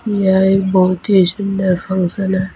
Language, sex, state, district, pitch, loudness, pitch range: Hindi, female, Uttar Pradesh, Saharanpur, 190 Hz, -15 LUFS, 185-195 Hz